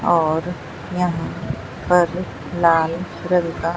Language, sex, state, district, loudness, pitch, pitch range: Hindi, female, Bihar, Katihar, -20 LUFS, 170 Hz, 165-180 Hz